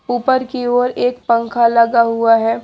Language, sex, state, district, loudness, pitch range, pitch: Hindi, female, Haryana, Jhajjar, -15 LUFS, 230-245 Hz, 235 Hz